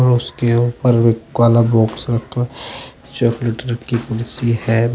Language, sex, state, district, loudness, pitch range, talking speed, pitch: Hindi, male, Uttar Pradesh, Shamli, -17 LUFS, 115-120 Hz, 145 wpm, 120 Hz